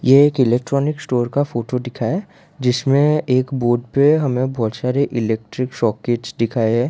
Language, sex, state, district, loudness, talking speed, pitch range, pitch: Hindi, male, Gujarat, Valsad, -18 LUFS, 165 wpm, 120-140 Hz, 130 Hz